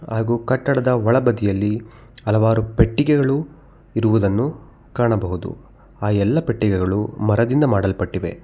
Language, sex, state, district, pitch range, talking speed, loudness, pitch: Kannada, male, Karnataka, Bangalore, 105-130 Hz, 85 wpm, -19 LUFS, 115 Hz